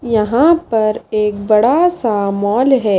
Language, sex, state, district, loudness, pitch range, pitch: Hindi, female, Maharashtra, Washim, -14 LUFS, 210-265 Hz, 220 Hz